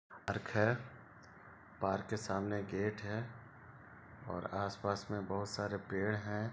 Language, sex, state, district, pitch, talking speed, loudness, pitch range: Hindi, male, Jharkhand, Sahebganj, 105 Hz, 130 wpm, -39 LUFS, 100-110 Hz